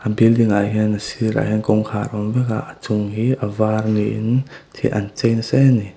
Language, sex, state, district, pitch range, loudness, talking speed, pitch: Mizo, male, Mizoram, Aizawl, 105-120 Hz, -19 LUFS, 230 wpm, 110 Hz